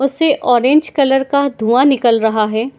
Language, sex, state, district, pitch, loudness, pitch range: Hindi, female, Bihar, Madhepura, 265 Hz, -13 LUFS, 235-280 Hz